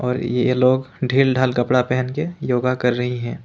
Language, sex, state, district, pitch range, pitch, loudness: Hindi, male, Jharkhand, Ranchi, 125-130 Hz, 125 Hz, -19 LUFS